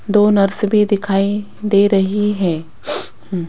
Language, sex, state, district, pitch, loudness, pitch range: Hindi, female, Rajasthan, Jaipur, 200 Hz, -16 LUFS, 195-210 Hz